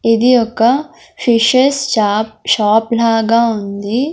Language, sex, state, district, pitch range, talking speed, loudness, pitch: Telugu, male, Andhra Pradesh, Sri Satya Sai, 220-245 Hz, 100 wpm, -13 LUFS, 230 Hz